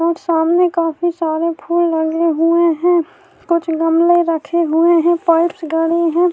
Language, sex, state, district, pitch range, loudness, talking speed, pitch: Urdu, female, Bihar, Saharsa, 325-345 Hz, -15 LUFS, 150 wpm, 335 Hz